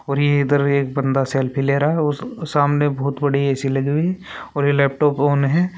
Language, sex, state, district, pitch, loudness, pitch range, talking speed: Hindi, male, Rajasthan, Churu, 145 Hz, -19 LUFS, 140-150 Hz, 230 wpm